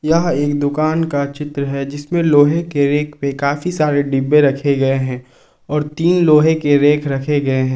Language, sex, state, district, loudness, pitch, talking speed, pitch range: Hindi, male, Jharkhand, Palamu, -16 LUFS, 145 Hz, 195 wpm, 140-155 Hz